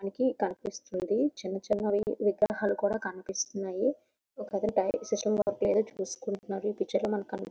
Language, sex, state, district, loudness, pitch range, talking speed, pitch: Telugu, female, Andhra Pradesh, Visakhapatnam, -31 LUFS, 195-215 Hz, 110 wpm, 205 Hz